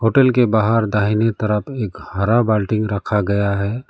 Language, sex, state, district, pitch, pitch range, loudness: Hindi, male, West Bengal, Alipurduar, 110 Hz, 105-115 Hz, -18 LUFS